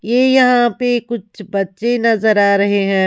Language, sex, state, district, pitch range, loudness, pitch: Hindi, female, Haryana, Rohtak, 200-240 Hz, -14 LUFS, 225 Hz